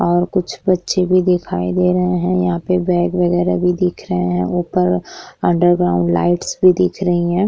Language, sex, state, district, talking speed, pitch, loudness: Hindi, female, Uttar Pradesh, Jyotiba Phule Nagar, 185 wpm, 175 Hz, -16 LUFS